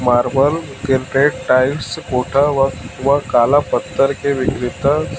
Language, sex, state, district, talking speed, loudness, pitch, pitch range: Hindi, male, Chhattisgarh, Raipur, 90 wpm, -16 LUFS, 135 Hz, 130-145 Hz